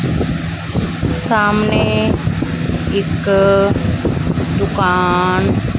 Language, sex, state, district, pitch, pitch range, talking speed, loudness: Punjabi, female, Punjab, Fazilka, 190 Hz, 180-200 Hz, 40 wpm, -16 LUFS